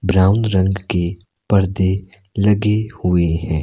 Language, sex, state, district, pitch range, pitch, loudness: Hindi, male, Himachal Pradesh, Shimla, 90-105 Hz, 95 Hz, -17 LUFS